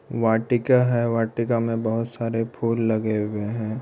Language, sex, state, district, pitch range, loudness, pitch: Hindi, male, Bihar, Purnia, 110-115 Hz, -23 LUFS, 115 Hz